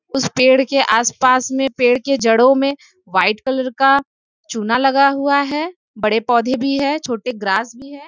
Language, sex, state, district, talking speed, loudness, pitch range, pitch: Hindi, female, Jharkhand, Sahebganj, 185 wpm, -16 LUFS, 240-275 Hz, 265 Hz